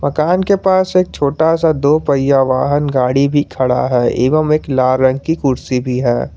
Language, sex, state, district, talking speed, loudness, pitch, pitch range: Hindi, male, Jharkhand, Garhwa, 200 wpm, -14 LUFS, 140 Hz, 130-155 Hz